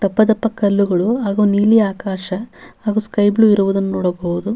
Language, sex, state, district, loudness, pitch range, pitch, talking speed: Kannada, female, Karnataka, Bellary, -16 LUFS, 195-215 Hz, 205 Hz, 120 wpm